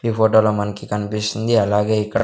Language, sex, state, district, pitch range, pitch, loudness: Telugu, male, Andhra Pradesh, Sri Satya Sai, 105-110 Hz, 105 Hz, -18 LUFS